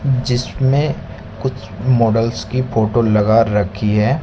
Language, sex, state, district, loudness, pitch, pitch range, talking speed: Hindi, male, Rajasthan, Bikaner, -16 LUFS, 115 Hz, 110-130 Hz, 115 wpm